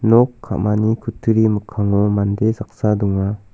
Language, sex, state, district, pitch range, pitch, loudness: Garo, male, Meghalaya, South Garo Hills, 100-110 Hz, 105 Hz, -18 LUFS